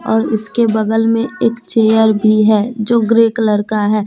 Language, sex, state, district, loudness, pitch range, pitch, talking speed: Hindi, female, Jharkhand, Deoghar, -13 LUFS, 215-230 Hz, 220 Hz, 190 wpm